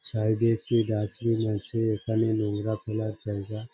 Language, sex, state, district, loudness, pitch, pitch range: Bengali, male, West Bengal, Jhargram, -28 LUFS, 110 Hz, 105-115 Hz